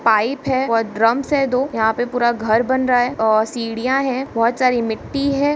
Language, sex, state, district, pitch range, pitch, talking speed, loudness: Hindi, female, Bihar, Muzaffarpur, 225-260 Hz, 245 Hz, 225 wpm, -18 LUFS